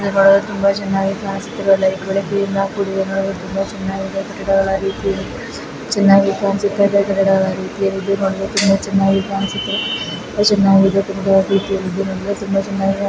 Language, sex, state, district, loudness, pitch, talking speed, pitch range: Kannada, female, Karnataka, Belgaum, -17 LUFS, 195 Hz, 65 wpm, 195-200 Hz